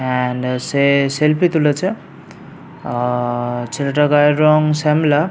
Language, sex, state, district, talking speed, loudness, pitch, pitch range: Bengali, male, West Bengal, Paschim Medinipur, 100 wpm, -16 LUFS, 145 Hz, 125-155 Hz